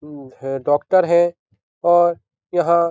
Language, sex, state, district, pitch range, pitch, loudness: Hindi, male, Bihar, Jahanabad, 145-175 Hz, 170 Hz, -18 LUFS